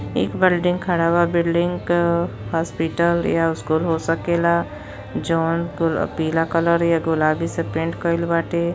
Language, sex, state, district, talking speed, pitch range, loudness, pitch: Bhojpuri, female, Uttar Pradesh, Deoria, 135 wpm, 165-170 Hz, -20 LUFS, 170 Hz